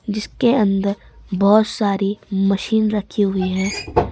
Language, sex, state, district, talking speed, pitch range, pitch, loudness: Hindi, female, Rajasthan, Jaipur, 115 wpm, 195-215 Hz, 205 Hz, -19 LUFS